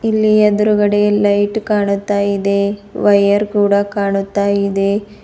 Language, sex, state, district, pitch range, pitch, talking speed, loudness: Kannada, female, Karnataka, Bidar, 200-210 Hz, 205 Hz, 105 wpm, -14 LUFS